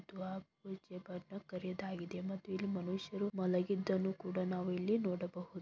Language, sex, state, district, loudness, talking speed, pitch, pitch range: Kannada, female, Karnataka, Belgaum, -40 LUFS, 115 wpm, 185 Hz, 180-195 Hz